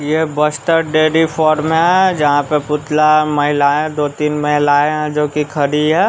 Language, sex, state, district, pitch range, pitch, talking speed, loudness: Hindi, male, Bihar, West Champaran, 150-155 Hz, 150 Hz, 175 wpm, -14 LUFS